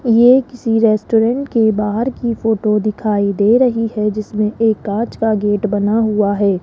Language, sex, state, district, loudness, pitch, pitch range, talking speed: Hindi, female, Rajasthan, Jaipur, -15 LUFS, 220 Hz, 210-230 Hz, 170 wpm